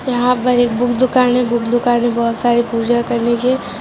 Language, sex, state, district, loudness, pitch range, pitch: Hindi, female, Bihar, Sitamarhi, -15 LUFS, 235-250 Hz, 240 Hz